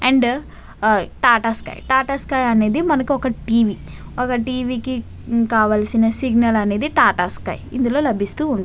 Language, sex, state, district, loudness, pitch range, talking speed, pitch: Telugu, female, Andhra Pradesh, Visakhapatnam, -18 LUFS, 225-260 Hz, 220 wpm, 245 Hz